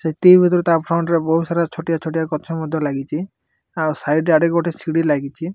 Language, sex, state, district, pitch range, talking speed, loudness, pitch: Odia, male, Odisha, Malkangiri, 155-170 Hz, 185 wpm, -18 LUFS, 165 Hz